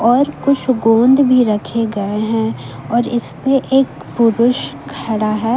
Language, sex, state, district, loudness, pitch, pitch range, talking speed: Hindi, female, Jharkhand, Ranchi, -15 LUFS, 235 Hz, 220-255 Hz, 140 wpm